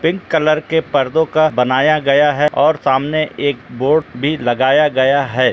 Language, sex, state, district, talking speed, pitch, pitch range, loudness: Hindi, male, Chhattisgarh, Bilaspur, 175 wpm, 145 Hz, 130-155 Hz, -15 LUFS